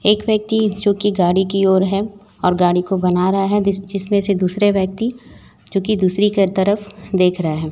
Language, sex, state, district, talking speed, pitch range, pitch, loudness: Hindi, female, Chhattisgarh, Raipur, 210 wpm, 185-205 Hz, 195 Hz, -17 LUFS